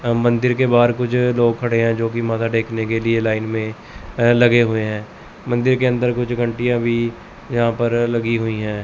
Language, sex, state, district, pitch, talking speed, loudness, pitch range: Hindi, male, Chandigarh, Chandigarh, 115 Hz, 210 wpm, -18 LUFS, 115-120 Hz